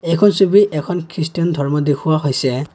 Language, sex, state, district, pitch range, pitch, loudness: Assamese, male, Assam, Kamrup Metropolitan, 145-180 Hz, 160 Hz, -16 LUFS